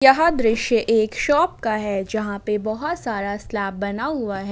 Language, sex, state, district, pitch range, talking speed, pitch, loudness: Hindi, female, Jharkhand, Ranchi, 205-255 Hz, 185 wpm, 220 Hz, -21 LUFS